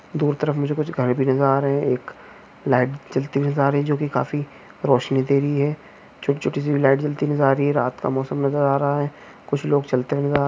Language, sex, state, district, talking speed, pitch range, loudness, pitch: Hindi, male, Chhattisgarh, Bastar, 265 wpm, 135-145 Hz, -21 LUFS, 140 Hz